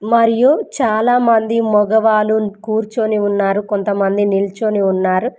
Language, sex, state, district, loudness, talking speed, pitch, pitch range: Telugu, female, Telangana, Mahabubabad, -15 LUFS, 90 wpm, 215 Hz, 205-230 Hz